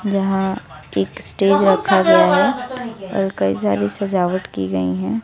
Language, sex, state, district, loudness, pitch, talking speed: Hindi, female, Bihar, West Champaran, -18 LUFS, 190 Hz, 150 wpm